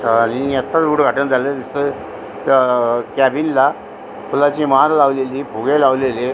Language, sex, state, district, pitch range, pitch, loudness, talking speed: Marathi, female, Maharashtra, Aurangabad, 130-145 Hz, 135 Hz, -16 LUFS, 125 wpm